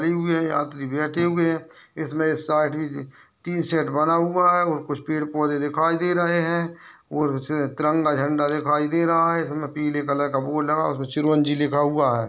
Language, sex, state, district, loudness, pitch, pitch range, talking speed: Hindi, male, Rajasthan, Churu, -22 LUFS, 150 Hz, 145-165 Hz, 195 wpm